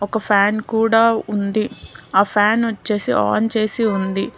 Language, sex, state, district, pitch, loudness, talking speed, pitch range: Telugu, female, Telangana, Hyderabad, 215 Hz, -18 LUFS, 135 wpm, 200-225 Hz